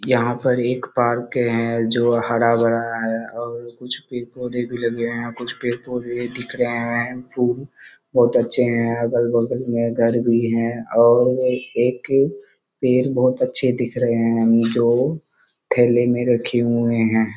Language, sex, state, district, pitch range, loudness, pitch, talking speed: Hindi, male, Bihar, Kishanganj, 115-125 Hz, -20 LUFS, 120 Hz, 150 wpm